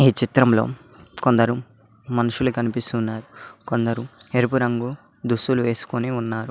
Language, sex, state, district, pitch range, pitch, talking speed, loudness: Telugu, male, Telangana, Mahabubabad, 115-125 Hz, 120 Hz, 110 wpm, -22 LUFS